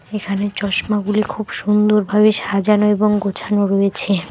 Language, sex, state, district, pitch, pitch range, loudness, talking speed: Bengali, female, West Bengal, Alipurduar, 210 Hz, 200-210 Hz, -17 LUFS, 110 wpm